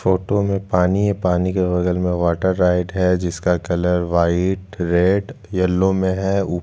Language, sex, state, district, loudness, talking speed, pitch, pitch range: Hindi, male, Chhattisgarh, Jashpur, -19 LUFS, 180 wpm, 90 Hz, 90-95 Hz